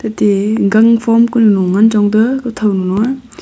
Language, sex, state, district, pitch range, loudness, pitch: Wancho, female, Arunachal Pradesh, Longding, 205-230 Hz, -12 LUFS, 220 Hz